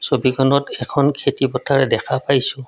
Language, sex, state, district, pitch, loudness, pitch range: Assamese, male, Assam, Kamrup Metropolitan, 135 Hz, -18 LUFS, 130-140 Hz